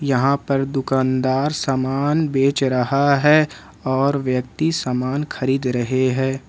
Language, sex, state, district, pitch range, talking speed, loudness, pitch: Hindi, male, Jharkhand, Ranchi, 130-140 Hz, 120 wpm, -19 LUFS, 135 Hz